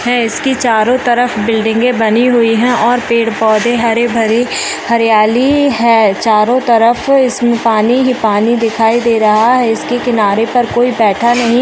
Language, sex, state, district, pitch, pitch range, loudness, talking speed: Hindi, female, Chhattisgarh, Rajnandgaon, 235 Hz, 225-245 Hz, -11 LUFS, 155 wpm